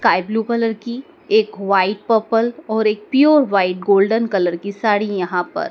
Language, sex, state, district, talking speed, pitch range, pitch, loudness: Hindi, male, Madhya Pradesh, Dhar, 190 wpm, 195-235 Hz, 215 Hz, -17 LUFS